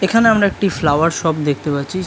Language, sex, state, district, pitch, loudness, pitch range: Bengali, male, West Bengal, Kolkata, 170 Hz, -16 LUFS, 150-195 Hz